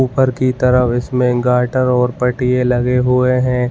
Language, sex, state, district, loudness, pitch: Hindi, male, Jharkhand, Jamtara, -15 LUFS, 125 Hz